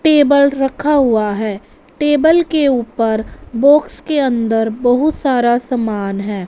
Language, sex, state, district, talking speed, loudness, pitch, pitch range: Hindi, female, Punjab, Fazilka, 130 wpm, -14 LUFS, 250 Hz, 225-290 Hz